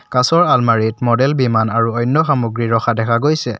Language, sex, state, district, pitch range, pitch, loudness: Assamese, male, Assam, Kamrup Metropolitan, 115-130 Hz, 120 Hz, -15 LUFS